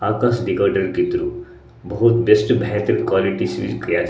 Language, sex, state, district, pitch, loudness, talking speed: Hindi, male, Odisha, Sambalpur, 120 Hz, -18 LUFS, 115 wpm